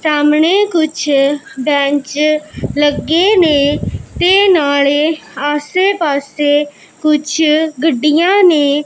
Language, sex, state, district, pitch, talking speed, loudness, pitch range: Punjabi, female, Punjab, Pathankot, 300 Hz, 80 wpm, -13 LUFS, 290-325 Hz